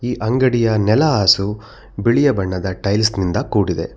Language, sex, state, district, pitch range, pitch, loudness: Kannada, male, Karnataka, Bangalore, 100-120 Hz, 105 Hz, -17 LUFS